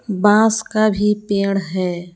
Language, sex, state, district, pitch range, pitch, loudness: Hindi, female, Jharkhand, Palamu, 190-215 Hz, 205 Hz, -17 LUFS